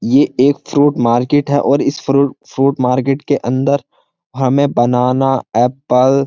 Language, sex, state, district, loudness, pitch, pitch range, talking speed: Hindi, male, Uttar Pradesh, Jyotiba Phule Nagar, -14 LUFS, 135 Hz, 125-140 Hz, 155 wpm